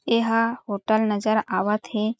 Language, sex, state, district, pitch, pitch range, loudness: Chhattisgarhi, female, Chhattisgarh, Jashpur, 220 Hz, 210-230 Hz, -23 LUFS